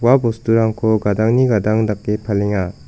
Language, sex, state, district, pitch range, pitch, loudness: Garo, male, Meghalaya, West Garo Hills, 105-115 Hz, 110 Hz, -17 LUFS